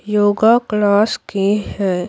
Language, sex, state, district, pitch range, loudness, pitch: Hindi, female, Bihar, Patna, 200-215 Hz, -16 LUFS, 205 Hz